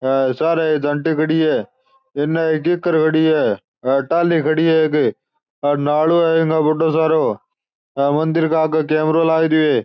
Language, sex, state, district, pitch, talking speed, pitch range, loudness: Marwari, male, Rajasthan, Churu, 160 Hz, 170 wpm, 155-165 Hz, -17 LUFS